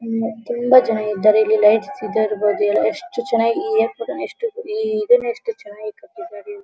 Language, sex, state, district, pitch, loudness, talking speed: Kannada, female, Karnataka, Dharwad, 230 Hz, -18 LUFS, 155 wpm